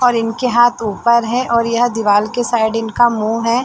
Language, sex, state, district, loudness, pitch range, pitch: Hindi, female, Chhattisgarh, Bilaspur, -15 LUFS, 225-240 Hz, 235 Hz